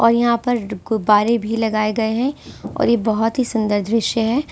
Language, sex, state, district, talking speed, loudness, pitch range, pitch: Hindi, female, Delhi, New Delhi, 210 wpm, -18 LUFS, 215-235 Hz, 225 Hz